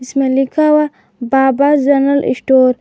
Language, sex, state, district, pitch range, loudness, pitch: Hindi, female, Jharkhand, Garhwa, 255-285 Hz, -13 LUFS, 270 Hz